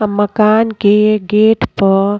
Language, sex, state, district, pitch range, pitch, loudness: Bhojpuri, female, Uttar Pradesh, Gorakhpur, 205-215 Hz, 210 Hz, -12 LUFS